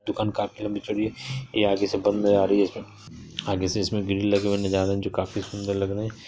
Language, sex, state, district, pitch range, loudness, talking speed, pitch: Hindi, male, Bihar, Saharsa, 100-105 Hz, -25 LUFS, 260 wpm, 100 Hz